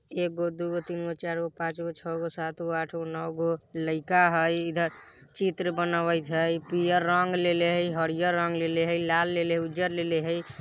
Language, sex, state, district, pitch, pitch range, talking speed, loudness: Bajjika, male, Bihar, Vaishali, 170 Hz, 165-175 Hz, 160 wpm, -28 LUFS